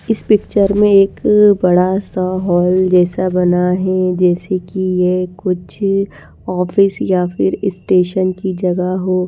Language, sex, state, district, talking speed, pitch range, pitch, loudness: Hindi, female, Bihar, Patna, 140 wpm, 180-195 Hz, 185 Hz, -14 LUFS